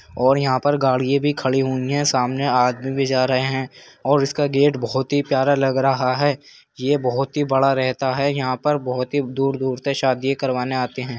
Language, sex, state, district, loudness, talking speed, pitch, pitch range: Hindi, male, Uttar Pradesh, Jyotiba Phule Nagar, -20 LUFS, 210 wpm, 135 Hz, 130-140 Hz